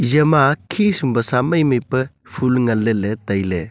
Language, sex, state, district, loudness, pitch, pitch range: Wancho, male, Arunachal Pradesh, Longding, -18 LUFS, 125 Hz, 115-150 Hz